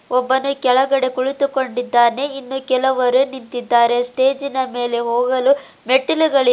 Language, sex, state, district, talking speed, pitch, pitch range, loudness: Kannada, female, Karnataka, Bidar, 90 wpm, 260 Hz, 245-270 Hz, -17 LUFS